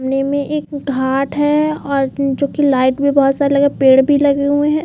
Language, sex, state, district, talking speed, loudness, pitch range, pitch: Hindi, female, Chhattisgarh, Bilaspur, 250 wpm, -15 LUFS, 270-290 Hz, 280 Hz